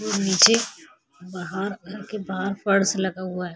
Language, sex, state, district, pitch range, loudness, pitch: Hindi, female, Uttar Pradesh, Jyotiba Phule Nagar, 185-210 Hz, -21 LUFS, 195 Hz